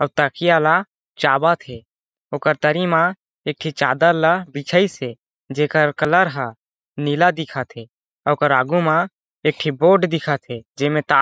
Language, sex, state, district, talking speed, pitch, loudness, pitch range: Chhattisgarhi, male, Chhattisgarh, Jashpur, 165 wpm, 150 Hz, -18 LUFS, 140-170 Hz